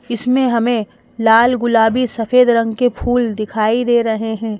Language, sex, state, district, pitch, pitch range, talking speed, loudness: Hindi, female, Madhya Pradesh, Bhopal, 230 Hz, 225-245 Hz, 155 wpm, -15 LUFS